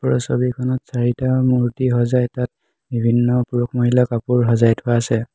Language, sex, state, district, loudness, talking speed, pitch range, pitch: Assamese, male, Assam, Hailakandi, -18 LUFS, 145 wpm, 120-125 Hz, 120 Hz